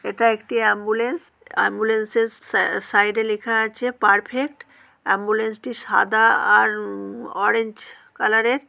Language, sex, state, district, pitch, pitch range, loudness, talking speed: Bengali, female, West Bengal, North 24 Parganas, 220 Hz, 215-230 Hz, -20 LUFS, 160 wpm